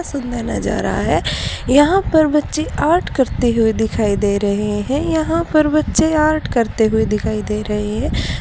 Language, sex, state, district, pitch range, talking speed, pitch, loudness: Hindi, female, Haryana, Charkhi Dadri, 215-310 Hz, 165 wpm, 250 Hz, -17 LUFS